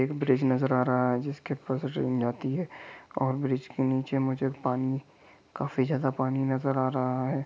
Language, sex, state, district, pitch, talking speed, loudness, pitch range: Hindi, male, Jharkhand, Sahebganj, 130 Hz, 210 wpm, -29 LUFS, 130-135 Hz